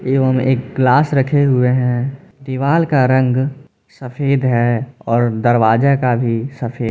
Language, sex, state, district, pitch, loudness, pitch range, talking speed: Hindi, male, Jharkhand, Palamu, 130 Hz, -15 LUFS, 120-140 Hz, 140 wpm